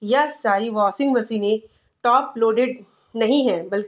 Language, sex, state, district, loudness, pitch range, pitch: Hindi, female, Bihar, Darbhanga, -20 LUFS, 210-255 Hz, 225 Hz